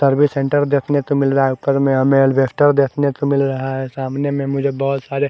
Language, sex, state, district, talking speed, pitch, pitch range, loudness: Hindi, male, Haryana, Charkhi Dadri, 235 wpm, 140 Hz, 135-140 Hz, -17 LUFS